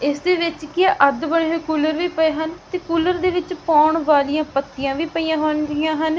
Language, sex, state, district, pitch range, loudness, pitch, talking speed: Punjabi, female, Punjab, Fazilka, 305-335 Hz, -19 LUFS, 320 Hz, 225 wpm